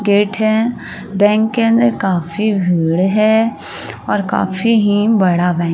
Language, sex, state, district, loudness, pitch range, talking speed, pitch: Hindi, female, Uttar Pradesh, Varanasi, -15 LUFS, 185-220 Hz, 145 wpm, 210 Hz